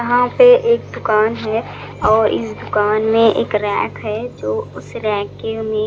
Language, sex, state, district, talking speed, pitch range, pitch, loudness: Hindi, male, Punjab, Fazilka, 175 wpm, 210-230 Hz, 220 Hz, -16 LUFS